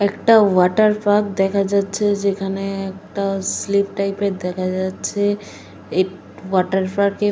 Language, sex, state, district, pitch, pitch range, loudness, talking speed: Bengali, female, Jharkhand, Jamtara, 200 Hz, 190-205 Hz, -19 LUFS, 125 wpm